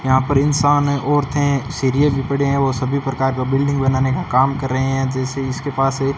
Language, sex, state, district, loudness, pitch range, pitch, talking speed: Hindi, male, Rajasthan, Bikaner, -18 LUFS, 130-140 Hz, 135 Hz, 245 wpm